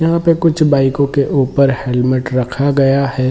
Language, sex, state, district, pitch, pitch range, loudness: Hindi, male, Jharkhand, Jamtara, 140 Hz, 130-145 Hz, -14 LUFS